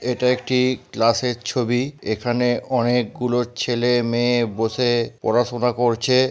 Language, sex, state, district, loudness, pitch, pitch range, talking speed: Bengali, male, West Bengal, Purulia, -21 LUFS, 120 Hz, 120-125 Hz, 105 wpm